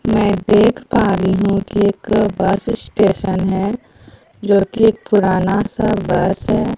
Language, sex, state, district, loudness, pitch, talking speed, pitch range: Hindi, female, Bihar, Katihar, -16 LUFS, 205 Hz, 150 wpm, 195-220 Hz